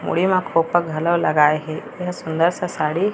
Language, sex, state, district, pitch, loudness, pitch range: Chhattisgarhi, female, Chhattisgarh, Raigarh, 170 Hz, -20 LUFS, 155-180 Hz